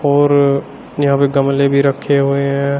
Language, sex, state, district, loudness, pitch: Hindi, male, Uttar Pradesh, Shamli, -14 LUFS, 140 Hz